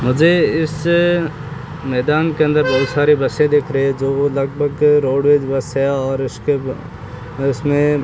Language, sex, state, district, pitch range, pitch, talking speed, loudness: Hindi, male, Rajasthan, Bikaner, 135-150 Hz, 145 Hz, 155 wpm, -16 LUFS